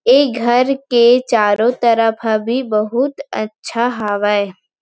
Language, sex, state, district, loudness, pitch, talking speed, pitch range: Chhattisgarhi, female, Chhattisgarh, Rajnandgaon, -15 LUFS, 235 Hz, 125 wpm, 215-250 Hz